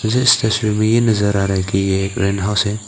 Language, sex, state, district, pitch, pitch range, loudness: Hindi, male, Arunachal Pradesh, Papum Pare, 105 Hz, 100-110 Hz, -16 LUFS